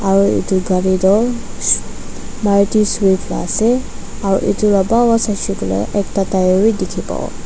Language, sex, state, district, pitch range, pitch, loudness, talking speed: Nagamese, female, Nagaland, Dimapur, 190-215 Hz, 200 Hz, -15 LUFS, 175 wpm